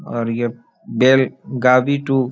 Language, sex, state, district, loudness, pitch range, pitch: Hindi, male, Bihar, Araria, -17 LUFS, 120-135 Hz, 125 Hz